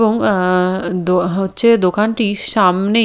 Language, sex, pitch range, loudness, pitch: Bengali, female, 180-220 Hz, -15 LUFS, 195 Hz